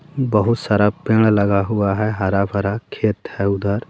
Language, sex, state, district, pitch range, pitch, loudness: Hindi, female, Jharkhand, Garhwa, 100-110 Hz, 105 Hz, -18 LUFS